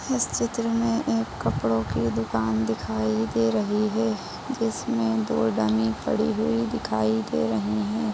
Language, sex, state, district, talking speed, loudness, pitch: Hindi, female, Uttar Pradesh, Jalaun, 145 wpm, -25 LUFS, 115 Hz